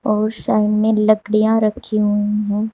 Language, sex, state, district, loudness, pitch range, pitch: Hindi, female, Uttar Pradesh, Saharanpur, -17 LUFS, 210-215 Hz, 215 Hz